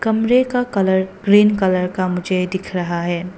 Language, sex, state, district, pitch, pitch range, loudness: Hindi, female, Arunachal Pradesh, Papum Pare, 190 Hz, 180-210 Hz, -17 LUFS